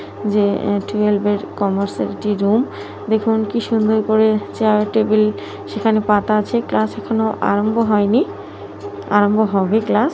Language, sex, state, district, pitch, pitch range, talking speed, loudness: Bengali, female, West Bengal, Jhargram, 210 Hz, 205-220 Hz, 125 wpm, -17 LUFS